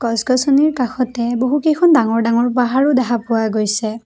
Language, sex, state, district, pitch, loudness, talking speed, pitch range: Assamese, female, Assam, Kamrup Metropolitan, 245 Hz, -16 LUFS, 135 wpm, 230-265 Hz